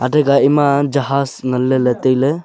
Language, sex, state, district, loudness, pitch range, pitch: Wancho, male, Arunachal Pradesh, Longding, -15 LUFS, 130-140 Hz, 140 Hz